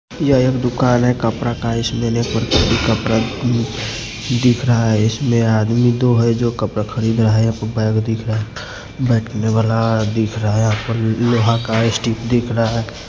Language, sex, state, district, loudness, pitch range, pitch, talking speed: Hindi, male, Himachal Pradesh, Shimla, -17 LUFS, 110-120 Hz, 115 Hz, 175 wpm